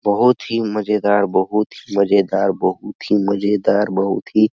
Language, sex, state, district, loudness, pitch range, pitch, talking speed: Hindi, male, Bihar, Araria, -18 LUFS, 100-105 Hz, 100 Hz, 160 wpm